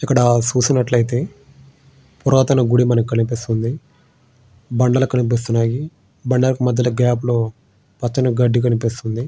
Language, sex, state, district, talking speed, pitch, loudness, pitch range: Telugu, male, Andhra Pradesh, Srikakulam, 85 wpm, 125 Hz, -17 LUFS, 120-130 Hz